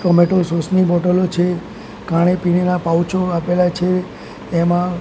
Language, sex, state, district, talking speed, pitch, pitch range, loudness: Gujarati, male, Gujarat, Gandhinagar, 130 wpm, 175 Hz, 175-180 Hz, -17 LUFS